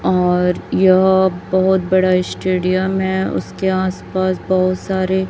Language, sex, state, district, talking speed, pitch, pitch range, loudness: Hindi, female, Chhattisgarh, Raipur, 115 wpm, 185 Hz, 185-190 Hz, -16 LUFS